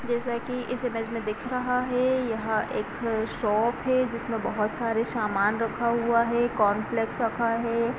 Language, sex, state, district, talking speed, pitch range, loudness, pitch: Hindi, female, Bihar, Sitamarhi, 165 wpm, 225-240 Hz, -27 LUFS, 235 Hz